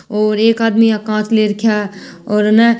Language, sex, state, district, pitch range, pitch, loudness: Hindi, female, Rajasthan, Churu, 210-225 Hz, 215 Hz, -14 LUFS